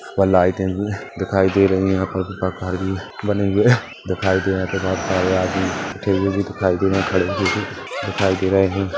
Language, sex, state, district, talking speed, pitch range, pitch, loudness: Hindi, male, Chhattisgarh, Kabirdham, 220 wpm, 95-100 Hz, 95 Hz, -19 LUFS